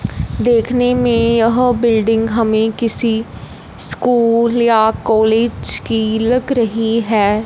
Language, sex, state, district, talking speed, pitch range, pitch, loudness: Hindi, female, Punjab, Fazilka, 105 wpm, 220-235 Hz, 230 Hz, -14 LUFS